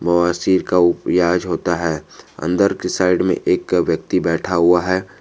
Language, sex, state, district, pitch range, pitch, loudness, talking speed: Hindi, male, Jharkhand, Garhwa, 85-90 Hz, 85 Hz, -17 LUFS, 160 wpm